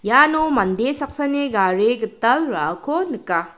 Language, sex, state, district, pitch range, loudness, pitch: Garo, female, Meghalaya, South Garo Hills, 210-290 Hz, -19 LUFS, 250 Hz